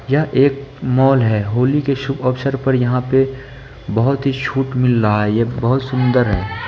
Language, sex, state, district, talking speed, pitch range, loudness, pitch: Maithili, male, Bihar, Supaul, 190 wpm, 120-135 Hz, -17 LUFS, 130 Hz